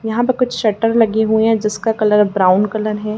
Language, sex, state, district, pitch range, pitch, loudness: Hindi, female, Madhya Pradesh, Dhar, 210-225 Hz, 215 Hz, -15 LUFS